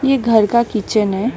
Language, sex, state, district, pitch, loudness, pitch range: Hindi, female, West Bengal, Alipurduar, 230 Hz, -15 LUFS, 215-240 Hz